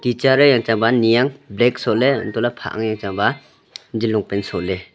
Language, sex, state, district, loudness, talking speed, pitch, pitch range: Wancho, male, Arunachal Pradesh, Longding, -18 LUFS, 265 wpm, 115 Hz, 100-125 Hz